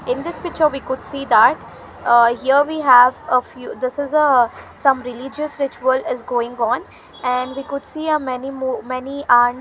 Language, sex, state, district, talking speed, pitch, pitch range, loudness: English, female, Haryana, Rohtak, 200 wpm, 260 Hz, 250-285 Hz, -18 LUFS